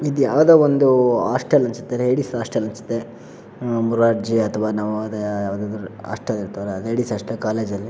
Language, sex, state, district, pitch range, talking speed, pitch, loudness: Kannada, male, Karnataka, Shimoga, 105-125 Hz, 135 wpm, 115 Hz, -20 LUFS